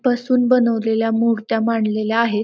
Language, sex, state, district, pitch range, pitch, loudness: Marathi, female, Maharashtra, Pune, 225-240 Hz, 230 Hz, -18 LUFS